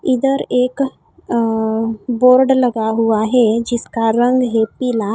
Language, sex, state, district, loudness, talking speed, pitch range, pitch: Hindi, female, Odisha, Khordha, -16 LUFS, 130 wpm, 225-255 Hz, 240 Hz